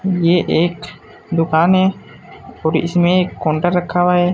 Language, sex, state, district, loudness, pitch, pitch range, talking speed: Hindi, male, Uttar Pradesh, Saharanpur, -16 LUFS, 175 Hz, 165-180 Hz, 150 wpm